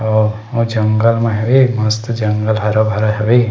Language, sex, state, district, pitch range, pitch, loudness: Chhattisgarhi, male, Chhattisgarh, Bastar, 110-115 Hz, 110 Hz, -14 LUFS